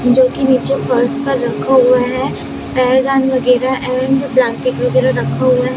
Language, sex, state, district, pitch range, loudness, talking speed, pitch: Hindi, female, Chhattisgarh, Raipur, 245-260 Hz, -14 LUFS, 165 wpm, 255 Hz